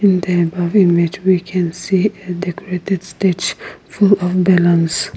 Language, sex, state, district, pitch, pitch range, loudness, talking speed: English, female, Nagaland, Kohima, 180 Hz, 175-190 Hz, -16 LUFS, 150 wpm